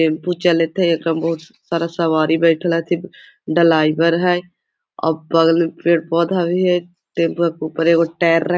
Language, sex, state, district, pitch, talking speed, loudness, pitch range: Magahi, female, Bihar, Gaya, 170 Hz, 170 wpm, -17 LUFS, 165-175 Hz